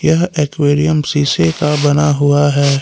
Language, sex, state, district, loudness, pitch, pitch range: Hindi, male, Jharkhand, Palamu, -13 LUFS, 145 Hz, 145-150 Hz